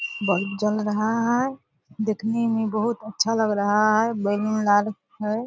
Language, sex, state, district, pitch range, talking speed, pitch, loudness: Hindi, female, Bihar, Purnia, 210-225 Hz, 155 wpm, 215 Hz, -23 LUFS